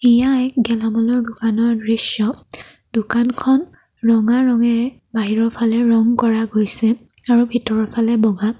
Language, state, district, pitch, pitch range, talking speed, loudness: Assamese, Assam, Kamrup Metropolitan, 230 Hz, 225-240 Hz, 120 wpm, -17 LUFS